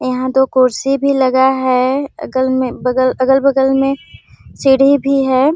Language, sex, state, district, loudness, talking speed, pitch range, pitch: Hindi, female, Chhattisgarh, Sarguja, -13 LUFS, 150 wpm, 260-275 Hz, 265 Hz